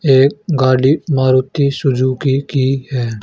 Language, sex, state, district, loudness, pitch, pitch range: Hindi, male, Haryana, Charkhi Dadri, -14 LUFS, 135 Hz, 130-140 Hz